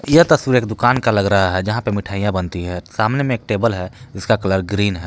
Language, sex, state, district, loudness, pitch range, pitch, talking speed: Hindi, male, Jharkhand, Palamu, -17 LUFS, 95-120 Hz, 105 Hz, 260 wpm